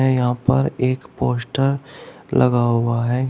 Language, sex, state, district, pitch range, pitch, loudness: Hindi, male, Uttar Pradesh, Shamli, 120-135 Hz, 125 Hz, -20 LUFS